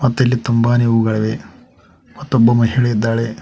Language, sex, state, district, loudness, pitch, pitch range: Kannada, male, Karnataka, Koppal, -15 LUFS, 115 Hz, 115-125 Hz